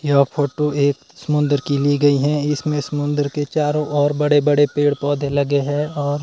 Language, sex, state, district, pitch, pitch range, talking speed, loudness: Hindi, male, Himachal Pradesh, Shimla, 145 Hz, 145-150 Hz, 175 wpm, -18 LUFS